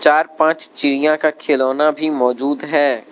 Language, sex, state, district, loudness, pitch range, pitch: Hindi, male, Arunachal Pradesh, Lower Dibang Valley, -16 LUFS, 140-155 Hz, 150 Hz